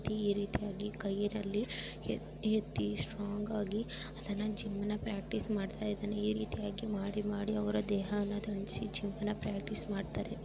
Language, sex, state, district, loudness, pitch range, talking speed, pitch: Kannada, female, Karnataka, Bijapur, -37 LUFS, 200-210 Hz, 125 wpm, 205 Hz